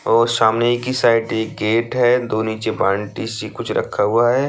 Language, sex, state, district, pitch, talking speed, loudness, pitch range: Hindi, male, Bihar, Bhagalpur, 115 Hz, 185 wpm, -18 LUFS, 110-120 Hz